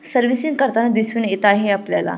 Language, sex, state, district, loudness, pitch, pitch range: Marathi, female, Maharashtra, Pune, -17 LUFS, 225 Hz, 200-250 Hz